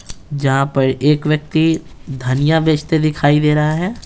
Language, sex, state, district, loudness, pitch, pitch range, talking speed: Hindi, male, Bihar, Patna, -16 LUFS, 150 Hz, 135-155 Hz, 145 wpm